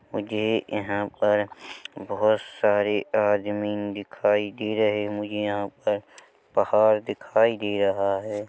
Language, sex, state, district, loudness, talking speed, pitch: Hindi, male, Chhattisgarh, Rajnandgaon, -25 LUFS, 120 wpm, 105 Hz